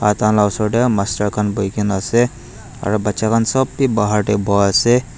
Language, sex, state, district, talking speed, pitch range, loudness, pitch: Nagamese, male, Nagaland, Dimapur, 255 wpm, 105-120 Hz, -17 LUFS, 105 Hz